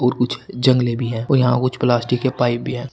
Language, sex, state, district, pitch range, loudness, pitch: Hindi, male, Uttar Pradesh, Shamli, 120-125 Hz, -19 LUFS, 125 Hz